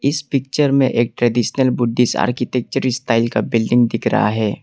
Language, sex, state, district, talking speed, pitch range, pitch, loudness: Hindi, male, Arunachal Pradesh, Lower Dibang Valley, 170 wpm, 115-135 Hz, 120 Hz, -17 LUFS